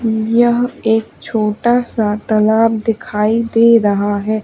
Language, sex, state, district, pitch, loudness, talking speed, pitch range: Hindi, female, Madhya Pradesh, Umaria, 220 Hz, -14 LUFS, 110 wpm, 215-230 Hz